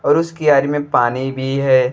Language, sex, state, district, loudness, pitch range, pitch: Bhojpuri, male, Uttar Pradesh, Deoria, -16 LUFS, 130-145 Hz, 135 Hz